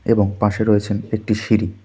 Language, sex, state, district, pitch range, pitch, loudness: Bengali, male, West Bengal, Darjeeling, 105-110 Hz, 105 Hz, -19 LUFS